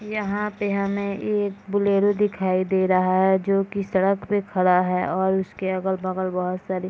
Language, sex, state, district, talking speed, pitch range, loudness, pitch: Hindi, female, Bihar, Gopalganj, 180 wpm, 185-200 Hz, -23 LUFS, 190 Hz